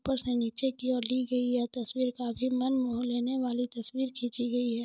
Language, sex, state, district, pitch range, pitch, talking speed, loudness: Hindi, female, Jharkhand, Jamtara, 240-255 Hz, 245 Hz, 220 wpm, -31 LUFS